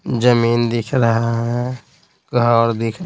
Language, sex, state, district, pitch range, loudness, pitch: Hindi, male, Bihar, Patna, 115-120 Hz, -17 LUFS, 120 Hz